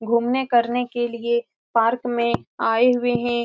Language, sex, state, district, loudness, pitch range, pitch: Hindi, female, Bihar, Saran, -21 LUFS, 235-245 Hz, 240 Hz